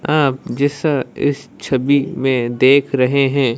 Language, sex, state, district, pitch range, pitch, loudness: Hindi, female, Odisha, Malkangiri, 130-145 Hz, 140 Hz, -16 LUFS